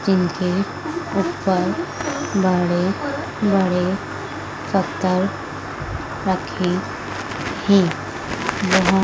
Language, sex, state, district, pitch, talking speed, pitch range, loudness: Hindi, female, Madhya Pradesh, Dhar, 185 Hz, 55 wpm, 180-190 Hz, -21 LUFS